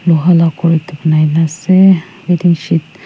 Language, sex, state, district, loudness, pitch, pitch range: Nagamese, female, Nagaland, Kohima, -11 LUFS, 165 Hz, 160-180 Hz